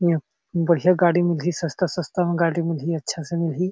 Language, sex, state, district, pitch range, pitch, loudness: Chhattisgarhi, male, Chhattisgarh, Sarguja, 165-175 Hz, 170 Hz, -22 LUFS